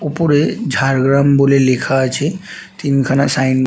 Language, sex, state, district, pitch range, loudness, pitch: Bengali, male, West Bengal, Jhargram, 130-145 Hz, -14 LUFS, 140 Hz